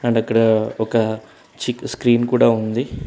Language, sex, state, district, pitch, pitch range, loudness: Telugu, male, Telangana, Hyderabad, 115 Hz, 110-120 Hz, -18 LUFS